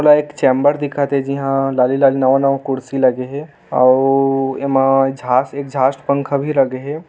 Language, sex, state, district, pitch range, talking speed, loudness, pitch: Hindi, male, Chhattisgarh, Raigarh, 135-140 Hz, 170 wpm, -16 LUFS, 135 Hz